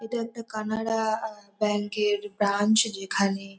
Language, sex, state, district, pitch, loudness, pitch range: Bengali, female, West Bengal, North 24 Parganas, 210 Hz, -26 LUFS, 205-220 Hz